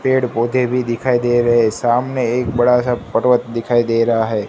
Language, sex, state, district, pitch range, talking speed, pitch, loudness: Hindi, male, Gujarat, Gandhinagar, 115-125 Hz, 215 wpm, 120 Hz, -16 LUFS